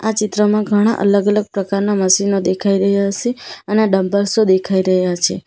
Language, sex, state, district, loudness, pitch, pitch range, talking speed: Gujarati, female, Gujarat, Valsad, -15 LUFS, 200 Hz, 195-210 Hz, 165 wpm